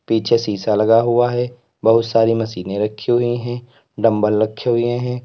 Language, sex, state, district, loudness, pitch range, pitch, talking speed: Hindi, male, Uttar Pradesh, Lalitpur, -17 LUFS, 110-120 Hz, 115 Hz, 170 wpm